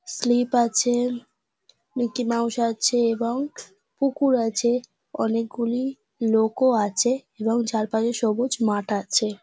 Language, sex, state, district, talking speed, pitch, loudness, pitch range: Bengali, female, West Bengal, Dakshin Dinajpur, 95 wpm, 235 Hz, -23 LUFS, 225-245 Hz